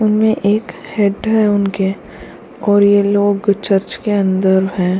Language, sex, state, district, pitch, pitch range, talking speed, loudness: Hindi, female, Bihar, Kishanganj, 200 Hz, 195-210 Hz, 145 wpm, -15 LUFS